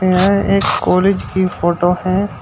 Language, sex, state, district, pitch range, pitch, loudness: Hindi, male, Uttar Pradesh, Shamli, 180-195 Hz, 185 Hz, -15 LUFS